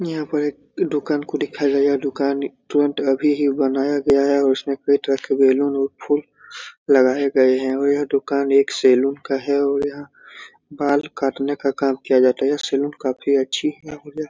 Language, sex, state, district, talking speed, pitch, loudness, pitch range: Hindi, male, Bihar, Supaul, 195 wpm, 140 Hz, -19 LUFS, 135-145 Hz